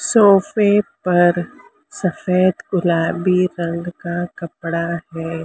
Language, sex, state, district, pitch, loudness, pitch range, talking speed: Hindi, female, Maharashtra, Mumbai Suburban, 175 Hz, -18 LUFS, 170-195 Hz, 90 wpm